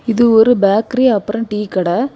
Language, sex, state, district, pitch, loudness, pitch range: Tamil, female, Tamil Nadu, Kanyakumari, 220 Hz, -13 LUFS, 205-240 Hz